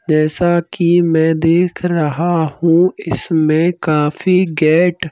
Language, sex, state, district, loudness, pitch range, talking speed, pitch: Hindi, male, Madhya Pradesh, Bhopal, -14 LUFS, 155-175 Hz, 115 wpm, 165 Hz